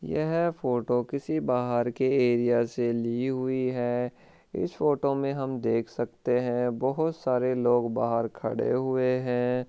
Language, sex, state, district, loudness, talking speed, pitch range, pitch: Hindi, male, Rajasthan, Churu, -27 LUFS, 150 wpm, 120-130 Hz, 125 Hz